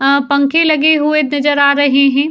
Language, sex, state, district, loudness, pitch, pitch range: Hindi, female, Uttar Pradesh, Jyotiba Phule Nagar, -11 LUFS, 285 Hz, 280-305 Hz